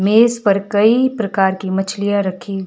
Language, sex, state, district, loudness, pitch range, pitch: Hindi, male, Himachal Pradesh, Shimla, -16 LUFS, 195-215 Hz, 200 Hz